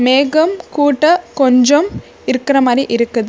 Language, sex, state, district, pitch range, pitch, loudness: Tamil, female, Karnataka, Bangalore, 250-305 Hz, 275 Hz, -13 LUFS